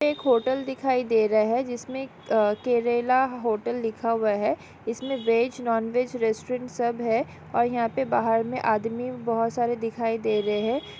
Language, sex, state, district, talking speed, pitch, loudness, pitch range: Hindi, female, Andhra Pradesh, Srikakulam, 170 wpm, 235 Hz, -25 LUFS, 225-250 Hz